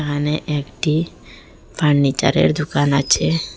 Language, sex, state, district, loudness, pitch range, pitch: Bengali, female, Assam, Hailakandi, -18 LUFS, 140-150 Hz, 145 Hz